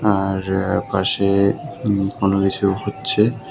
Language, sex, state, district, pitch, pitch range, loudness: Bengali, male, West Bengal, Cooch Behar, 100 Hz, 95-105 Hz, -19 LUFS